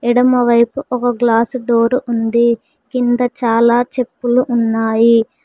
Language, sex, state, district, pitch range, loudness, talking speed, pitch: Telugu, female, Telangana, Mahabubabad, 230-250 Hz, -14 LUFS, 110 wpm, 240 Hz